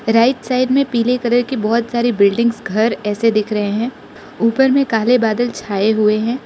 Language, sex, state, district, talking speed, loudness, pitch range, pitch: Hindi, female, Arunachal Pradesh, Lower Dibang Valley, 195 wpm, -16 LUFS, 215-245 Hz, 230 Hz